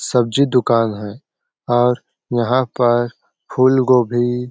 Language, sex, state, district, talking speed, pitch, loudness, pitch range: Hindi, male, Chhattisgarh, Sarguja, 105 wpm, 120 Hz, -17 LUFS, 120-130 Hz